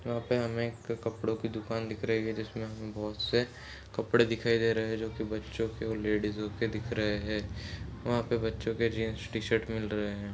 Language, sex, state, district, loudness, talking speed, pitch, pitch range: Hindi, male, Chhattisgarh, Kabirdham, -33 LUFS, 220 wpm, 110 Hz, 105-115 Hz